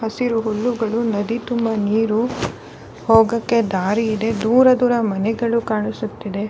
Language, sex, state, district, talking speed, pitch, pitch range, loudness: Kannada, female, Karnataka, Bellary, 110 wpm, 225 Hz, 215-235 Hz, -19 LUFS